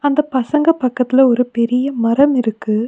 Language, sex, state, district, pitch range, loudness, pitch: Tamil, female, Tamil Nadu, Nilgiris, 240-285 Hz, -15 LUFS, 255 Hz